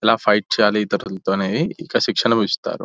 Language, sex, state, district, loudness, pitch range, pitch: Telugu, male, Telangana, Nalgonda, -19 LUFS, 95-105 Hz, 105 Hz